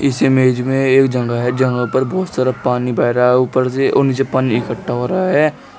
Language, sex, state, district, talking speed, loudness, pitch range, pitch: Hindi, male, Uttar Pradesh, Shamli, 240 wpm, -15 LUFS, 125-135 Hz, 130 Hz